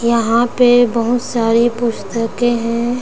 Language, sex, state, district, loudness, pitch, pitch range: Hindi, female, Chhattisgarh, Raigarh, -15 LUFS, 235 Hz, 230-240 Hz